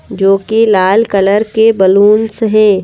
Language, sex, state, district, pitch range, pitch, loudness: Hindi, female, Madhya Pradesh, Bhopal, 195-220 Hz, 210 Hz, -10 LUFS